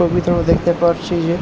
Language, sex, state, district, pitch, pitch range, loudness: Bengali, male, West Bengal, Jhargram, 170 Hz, 170-175 Hz, -16 LUFS